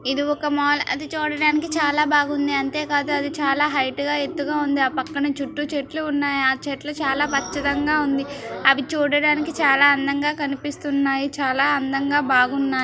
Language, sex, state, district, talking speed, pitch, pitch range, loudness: Telugu, female, Andhra Pradesh, Srikakulam, 155 wpm, 285 Hz, 275-295 Hz, -21 LUFS